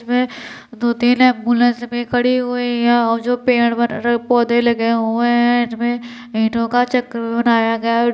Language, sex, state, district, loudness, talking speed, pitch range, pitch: Hindi, female, Uttar Pradesh, Deoria, -16 LUFS, 185 wpm, 235-245 Hz, 240 Hz